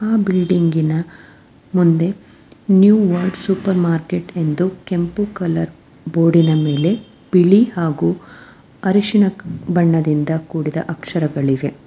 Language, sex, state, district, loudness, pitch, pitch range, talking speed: Kannada, female, Karnataka, Bangalore, -17 LUFS, 170 Hz, 160-190 Hz, 90 wpm